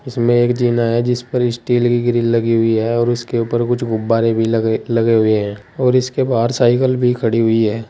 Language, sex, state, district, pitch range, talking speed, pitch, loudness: Hindi, male, Uttar Pradesh, Saharanpur, 115-120 Hz, 230 wpm, 120 Hz, -16 LUFS